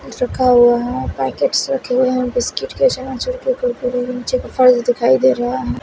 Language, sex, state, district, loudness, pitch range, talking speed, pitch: Hindi, female, Himachal Pradesh, Shimla, -16 LUFS, 240-260 Hz, 165 wpm, 250 Hz